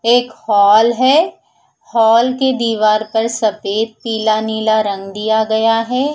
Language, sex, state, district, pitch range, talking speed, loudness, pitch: Hindi, female, Punjab, Fazilka, 215-235 Hz, 135 wpm, -14 LUFS, 225 Hz